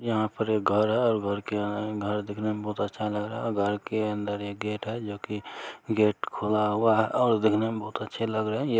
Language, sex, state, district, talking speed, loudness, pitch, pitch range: Maithili, male, Bihar, Begusarai, 275 wpm, -28 LUFS, 105 Hz, 105-110 Hz